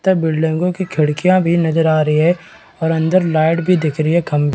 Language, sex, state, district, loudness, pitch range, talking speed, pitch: Hindi, male, Chhattisgarh, Raigarh, -15 LUFS, 155-180 Hz, 225 wpm, 165 Hz